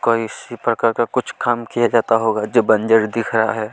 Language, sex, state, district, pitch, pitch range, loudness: Hindi, male, Chhattisgarh, Kabirdham, 115 Hz, 110-120 Hz, -18 LUFS